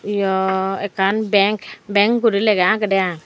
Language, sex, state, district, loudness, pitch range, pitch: Chakma, female, Tripura, Dhalai, -17 LUFS, 190-210 Hz, 200 Hz